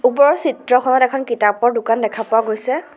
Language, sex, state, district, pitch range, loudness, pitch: Assamese, female, Assam, Sonitpur, 225-270 Hz, -16 LUFS, 250 Hz